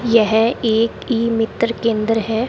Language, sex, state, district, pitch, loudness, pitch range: Hindi, female, Rajasthan, Bikaner, 230 Hz, -17 LUFS, 225-235 Hz